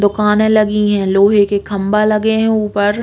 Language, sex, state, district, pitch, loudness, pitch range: Bundeli, female, Uttar Pradesh, Hamirpur, 210 Hz, -13 LUFS, 205-215 Hz